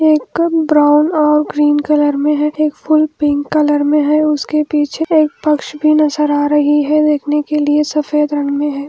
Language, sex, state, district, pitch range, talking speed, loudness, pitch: Hindi, female, Andhra Pradesh, Anantapur, 295-305 Hz, 195 wpm, -13 LUFS, 300 Hz